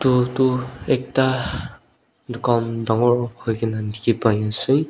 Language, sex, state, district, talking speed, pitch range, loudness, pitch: Nagamese, male, Nagaland, Dimapur, 135 wpm, 115-130 Hz, -21 LUFS, 120 Hz